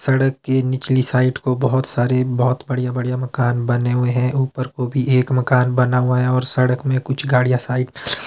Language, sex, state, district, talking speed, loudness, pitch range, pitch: Hindi, male, Himachal Pradesh, Shimla, 210 wpm, -18 LUFS, 125-130 Hz, 125 Hz